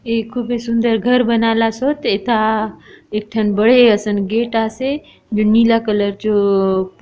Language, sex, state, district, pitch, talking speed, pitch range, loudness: Halbi, female, Chhattisgarh, Bastar, 225 Hz, 135 wpm, 210-235 Hz, -16 LUFS